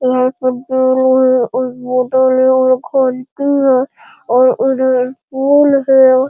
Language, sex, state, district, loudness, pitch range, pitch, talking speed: Hindi, female, Bihar, Jamui, -13 LUFS, 255-265 Hz, 260 Hz, 40 wpm